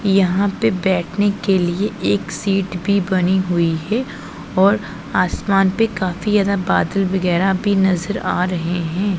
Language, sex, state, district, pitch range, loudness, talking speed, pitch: Hindi, female, Punjab, Pathankot, 180-200 Hz, -18 LUFS, 150 wpm, 190 Hz